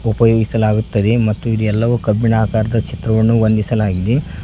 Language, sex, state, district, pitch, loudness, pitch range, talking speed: Kannada, male, Karnataka, Koppal, 110 Hz, -15 LUFS, 110-115 Hz, 110 wpm